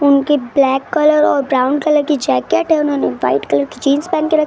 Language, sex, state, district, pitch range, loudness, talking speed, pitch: Hindi, female, Maharashtra, Gondia, 275-300 Hz, -15 LUFS, 230 wpm, 290 Hz